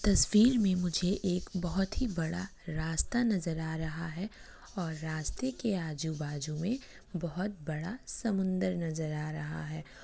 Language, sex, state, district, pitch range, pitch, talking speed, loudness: Hindi, female, Bihar, Kishanganj, 160-200 Hz, 175 Hz, 145 wpm, -33 LUFS